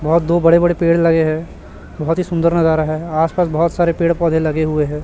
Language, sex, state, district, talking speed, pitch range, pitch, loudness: Hindi, male, Chhattisgarh, Raipur, 260 wpm, 155-170 Hz, 165 Hz, -15 LUFS